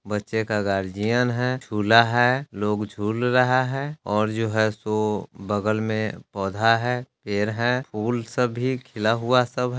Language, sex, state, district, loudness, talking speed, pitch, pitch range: Hindi, male, Bihar, Sitamarhi, -23 LUFS, 165 wpm, 115 Hz, 105-125 Hz